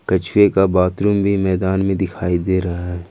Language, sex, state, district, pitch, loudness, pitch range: Hindi, male, Jharkhand, Ranchi, 95 Hz, -17 LUFS, 90-95 Hz